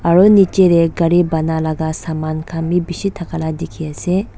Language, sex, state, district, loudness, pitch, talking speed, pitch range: Nagamese, female, Nagaland, Dimapur, -16 LUFS, 165 Hz, 190 wpm, 160-175 Hz